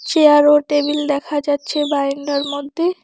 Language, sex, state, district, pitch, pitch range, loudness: Bengali, female, West Bengal, Alipurduar, 290 Hz, 285-295 Hz, -17 LUFS